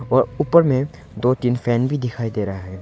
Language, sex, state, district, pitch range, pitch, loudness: Hindi, male, Arunachal Pradesh, Longding, 105-130 Hz, 125 Hz, -20 LUFS